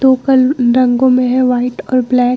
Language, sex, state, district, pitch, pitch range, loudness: Hindi, female, Bihar, Vaishali, 255 Hz, 250-260 Hz, -12 LUFS